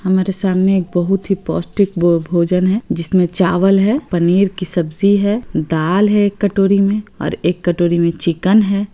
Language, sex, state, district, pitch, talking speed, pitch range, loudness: Hindi, female, Bihar, Gopalganj, 190 Hz, 180 wpm, 175-200 Hz, -15 LUFS